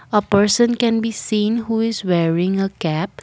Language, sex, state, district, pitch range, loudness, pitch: English, female, Assam, Kamrup Metropolitan, 190-225 Hz, -18 LUFS, 210 Hz